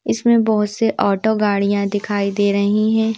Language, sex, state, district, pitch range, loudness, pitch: Hindi, female, Madhya Pradesh, Bhopal, 200-220 Hz, -17 LUFS, 210 Hz